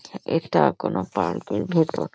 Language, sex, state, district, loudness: Bengali, female, West Bengal, Kolkata, -23 LUFS